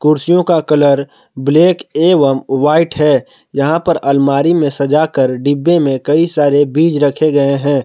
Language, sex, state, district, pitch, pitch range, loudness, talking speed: Hindi, male, Jharkhand, Palamu, 145 Hz, 140-160 Hz, -12 LUFS, 155 wpm